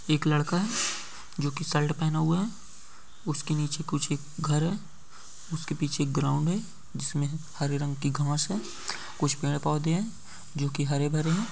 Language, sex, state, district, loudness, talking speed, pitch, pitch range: Hindi, male, Rajasthan, Churu, -29 LUFS, 175 wpm, 155 Hz, 145-170 Hz